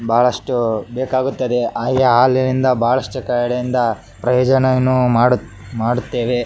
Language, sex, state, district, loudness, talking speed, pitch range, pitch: Kannada, male, Karnataka, Raichur, -17 LUFS, 85 wpm, 120-130 Hz, 125 Hz